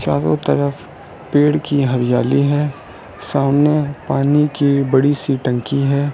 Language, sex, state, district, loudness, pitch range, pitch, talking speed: Hindi, male, Rajasthan, Bikaner, -16 LUFS, 130-145 Hz, 140 Hz, 125 wpm